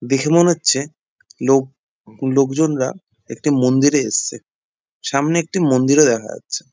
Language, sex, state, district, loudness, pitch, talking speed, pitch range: Bengali, male, West Bengal, Jalpaiguri, -17 LUFS, 140 Hz, 125 wpm, 130-155 Hz